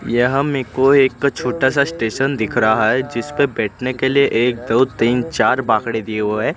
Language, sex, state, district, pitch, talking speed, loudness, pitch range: Hindi, male, Gujarat, Gandhinagar, 125 Hz, 210 wpm, -17 LUFS, 115-135 Hz